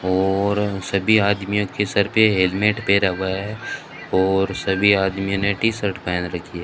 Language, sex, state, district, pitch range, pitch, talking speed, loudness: Hindi, male, Rajasthan, Bikaner, 95-105 Hz, 100 Hz, 170 wpm, -20 LUFS